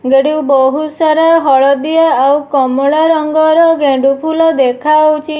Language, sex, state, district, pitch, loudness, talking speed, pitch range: Odia, female, Odisha, Nuapada, 300 Hz, -10 LUFS, 100 wpm, 275-315 Hz